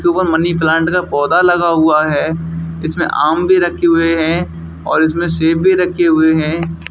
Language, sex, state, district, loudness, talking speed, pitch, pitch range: Hindi, male, Haryana, Charkhi Dadri, -13 LUFS, 180 wpm, 165 Hz, 160-175 Hz